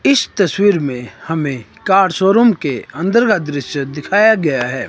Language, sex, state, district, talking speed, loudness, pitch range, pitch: Hindi, male, Himachal Pradesh, Shimla, 160 wpm, -15 LUFS, 140-205 Hz, 165 Hz